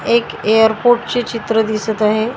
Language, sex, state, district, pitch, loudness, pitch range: Marathi, female, Maharashtra, Washim, 220 Hz, -15 LUFS, 220-235 Hz